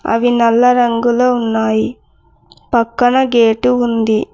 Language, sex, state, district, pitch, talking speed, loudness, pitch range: Telugu, female, Telangana, Mahabubabad, 235 Hz, 95 wpm, -13 LUFS, 225-245 Hz